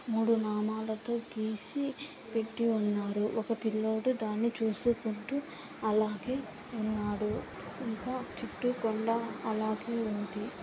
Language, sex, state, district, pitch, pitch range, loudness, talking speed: Telugu, female, Andhra Pradesh, Anantapur, 225 Hz, 215-235 Hz, -33 LUFS, 90 wpm